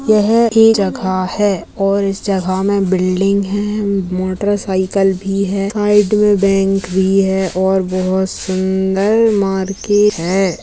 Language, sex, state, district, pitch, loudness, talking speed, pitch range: Hindi, female, Bihar, Darbhanga, 195 Hz, -15 LUFS, 140 wpm, 190-205 Hz